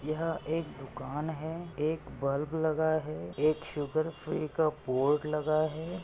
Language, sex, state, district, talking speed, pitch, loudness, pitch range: Hindi, male, Maharashtra, Pune, 150 wpm, 155 Hz, -32 LUFS, 150-160 Hz